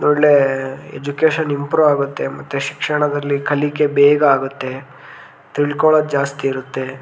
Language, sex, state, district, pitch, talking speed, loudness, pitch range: Kannada, male, Karnataka, Gulbarga, 140 Hz, 105 wpm, -17 LUFS, 135-150 Hz